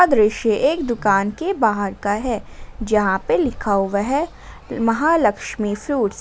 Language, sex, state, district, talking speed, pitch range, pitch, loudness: Hindi, female, Jharkhand, Ranchi, 145 wpm, 205-265 Hz, 220 Hz, -19 LUFS